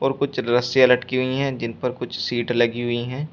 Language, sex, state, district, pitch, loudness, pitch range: Hindi, male, Uttar Pradesh, Shamli, 125 Hz, -21 LUFS, 120-130 Hz